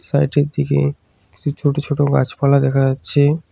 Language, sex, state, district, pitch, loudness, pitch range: Bengali, male, West Bengal, Cooch Behar, 140 Hz, -17 LUFS, 135-145 Hz